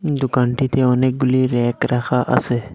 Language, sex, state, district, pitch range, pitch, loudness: Bengali, male, Assam, Hailakandi, 120-130 Hz, 125 Hz, -18 LUFS